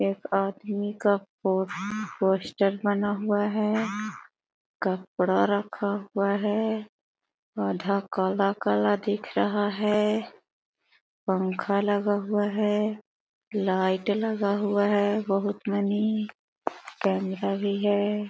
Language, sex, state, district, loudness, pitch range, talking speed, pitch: Magahi, female, Bihar, Gaya, -27 LUFS, 195-210 Hz, 100 wpm, 205 Hz